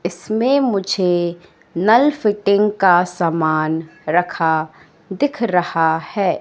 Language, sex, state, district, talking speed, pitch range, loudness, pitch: Hindi, female, Madhya Pradesh, Katni, 95 wpm, 165-205 Hz, -17 LUFS, 180 Hz